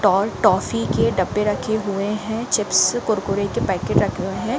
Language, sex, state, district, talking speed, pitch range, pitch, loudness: Hindi, female, Chhattisgarh, Bilaspur, 185 wpm, 185-220 Hz, 205 Hz, -20 LUFS